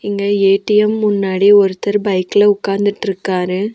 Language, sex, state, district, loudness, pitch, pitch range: Tamil, female, Tamil Nadu, Nilgiris, -14 LUFS, 200 Hz, 195-205 Hz